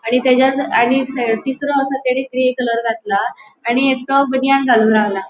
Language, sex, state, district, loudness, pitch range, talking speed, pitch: Konkani, female, Goa, North and South Goa, -16 LUFS, 230-265 Hz, 160 wpm, 255 Hz